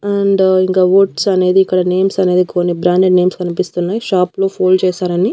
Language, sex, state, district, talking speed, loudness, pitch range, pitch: Telugu, female, Andhra Pradesh, Annamaya, 170 wpm, -13 LUFS, 180-190 Hz, 185 Hz